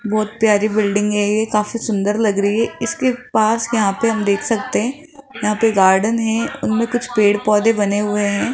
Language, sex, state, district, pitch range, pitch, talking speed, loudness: Hindi, female, Rajasthan, Jaipur, 205-230 Hz, 215 Hz, 205 wpm, -17 LUFS